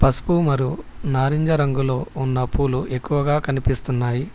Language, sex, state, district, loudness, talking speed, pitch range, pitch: Telugu, male, Telangana, Hyderabad, -21 LUFS, 110 wpm, 130-145 Hz, 135 Hz